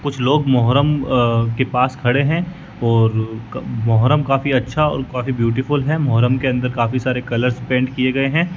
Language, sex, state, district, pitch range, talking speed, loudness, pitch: Hindi, male, Rajasthan, Bikaner, 120-140 Hz, 180 wpm, -17 LUFS, 130 Hz